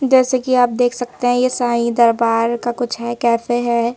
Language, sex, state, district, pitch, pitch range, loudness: Hindi, female, Madhya Pradesh, Bhopal, 240 Hz, 235-245 Hz, -17 LUFS